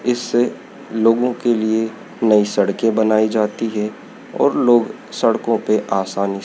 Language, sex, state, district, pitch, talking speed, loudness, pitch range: Hindi, male, Madhya Pradesh, Dhar, 110 Hz, 130 wpm, -18 LUFS, 105-120 Hz